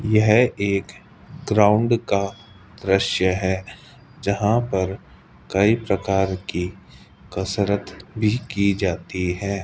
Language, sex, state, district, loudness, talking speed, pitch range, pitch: Hindi, male, Rajasthan, Jaipur, -21 LUFS, 100 wpm, 95-110 Hz, 100 Hz